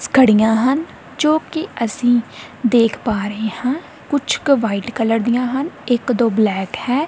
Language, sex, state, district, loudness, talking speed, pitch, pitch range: Punjabi, female, Punjab, Kapurthala, -18 LUFS, 150 wpm, 240 Hz, 225-270 Hz